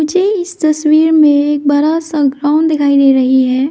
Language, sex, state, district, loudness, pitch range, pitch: Hindi, female, Arunachal Pradesh, Lower Dibang Valley, -11 LUFS, 280-315 Hz, 295 Hz